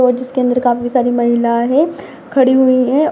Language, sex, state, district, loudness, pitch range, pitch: Hindi, female, Bihar, Jamui, -14 LUFS, 240-260 Hz, 255 Hz